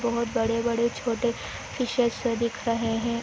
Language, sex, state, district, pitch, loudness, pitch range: Hindi, female, Andhra Pradesh, Anantapur, 235 Hz, -27 LUFS, 230-235 Hz